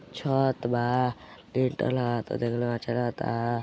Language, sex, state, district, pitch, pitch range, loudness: Hindi, male, Uttar Pradesh, Gorakhpur, 120 Hz, 120-130 Hz, -28 LUFS